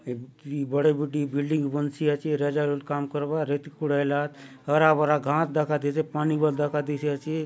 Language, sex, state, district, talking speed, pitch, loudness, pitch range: Halbi, male, Chhattisgarh, Bastar, 145 wpm, 145 Hz, -26 LUFS, 145-150 Hz